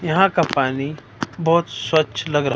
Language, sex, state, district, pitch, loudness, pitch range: Hindi, male, Himachal Pradesh, Shimla, 150 Hz, -20 LUFS, 135-165 Hz